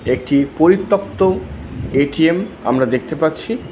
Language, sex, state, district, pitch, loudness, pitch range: Bengali, male, West Bengal, Alipurduar, 155 Hz, -16 LUFS, 130-185 Hz